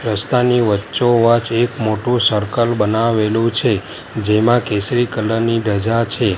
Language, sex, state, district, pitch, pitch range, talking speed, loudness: Gujarati, male, Gujarat, Valsad, 115 Hz, 110-120 Hz, 120 wpm, -16 LUFS